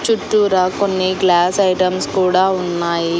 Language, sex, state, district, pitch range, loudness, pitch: Telugu, female, Andhra Pradesh, Annamaya, 180-190 Hz, -16 LUFS, 185 Hz